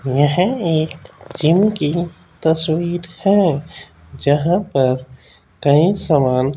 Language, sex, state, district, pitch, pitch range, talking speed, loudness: Hindi, male, Rajasthan, Jaipur, 160 Hz, 140-175 Hz, 90 wpm, -17 LUFS